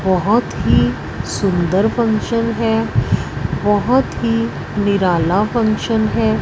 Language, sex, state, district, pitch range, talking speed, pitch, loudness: Hindi, female, Punjab, Fazilka, 185-225 Hz, 95 wpm, 205 Hz, -17 LUFS